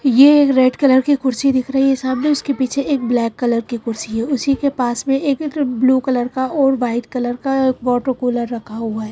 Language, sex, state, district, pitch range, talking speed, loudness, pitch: Hindi, female, Madhya Pradesh, Bhopal, 245-275 Hz, 235 wpm, -17 LUFS, 260 Hz